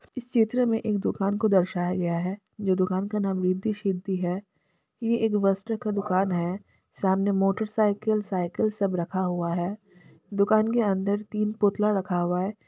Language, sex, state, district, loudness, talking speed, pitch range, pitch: Hindi, female, Jharkhand, Jamtara, -26 LUFS, 175 wpm, 185-210 Hz, 195 Hz